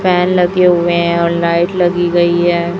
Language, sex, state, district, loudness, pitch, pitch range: Hindi, female, Chhattisgarh, Raipur, -12 LUFS, 175 Hz, 170-180 Hz